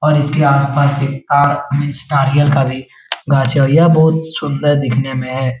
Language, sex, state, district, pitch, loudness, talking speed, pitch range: Hindi, male, Bihar, Jahanabad, 140 Hz, -14 LUFS, 130 wpm, 135-145 Hz